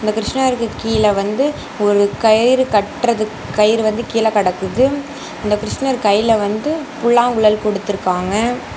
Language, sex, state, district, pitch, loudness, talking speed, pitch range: Tamil, female, Tamil Nadu, Namakkal, 220 Hz, -16 LUFS, 115 wpm, 205-240 Hz